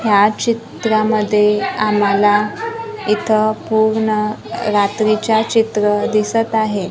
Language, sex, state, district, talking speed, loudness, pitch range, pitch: Marathi, female, Maharashtra, Gondia, 80 wpm, -16 LUFS, 210-225 Hz, 215 Hz